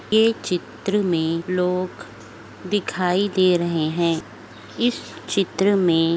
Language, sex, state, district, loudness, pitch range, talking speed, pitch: Hindi, female, Uttar Pradesh, Etah, -21 LUFS, 160-195 Hz, 115 wpm, 180 Hz